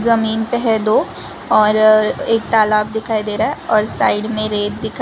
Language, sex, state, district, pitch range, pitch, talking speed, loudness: Hindi, female, Gujarat, Valsad, 215-220 Hz, 220 Hz, 190 wpm, -16 LUFS